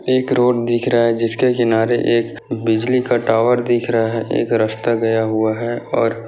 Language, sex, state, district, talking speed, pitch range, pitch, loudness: Hindi, male, Maharashtra, Sindhudurg, 200 wpm, 115-120 Hz, 115 Hz, -17 LUFS